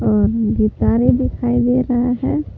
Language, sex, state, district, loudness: Hindi, female, Jharkhand, Palamu, -17 LUFS